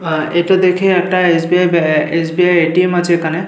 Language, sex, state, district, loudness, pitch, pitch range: Bengali, male, West Bengal, Paschim Medinipur, -13 LUFS, 175 Hz, 165-180 Hz